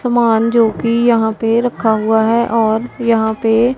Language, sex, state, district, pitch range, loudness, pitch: Hindi, female, Punjab, Pathankot, 220-235 Hz, -14 LUFS, 230 Hz